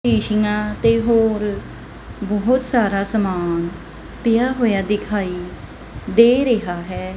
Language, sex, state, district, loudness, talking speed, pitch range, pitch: Punjabi, female, Punjab, Kapurthala, -18 LUFS, 100 wpm, 195-230 Hz, 210 Hz